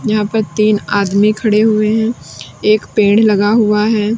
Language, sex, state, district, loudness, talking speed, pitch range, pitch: Hindi, female, Uttar Pradesh, Lalitpur, -13 LUFS, 170 wpm, 205-215 Hz, 215 Hz